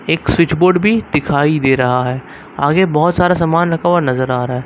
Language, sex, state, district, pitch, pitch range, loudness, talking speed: Hindi, male, Uttar Pradesh, Lucknow, 155 Hz, 130-175 Hz, -14 LUFS, 230 wpm